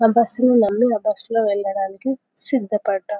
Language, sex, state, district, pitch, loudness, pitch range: Telugu, female, Telangana, Karimnagar, 225 Hz, -20 LUFS, 205-250 Hz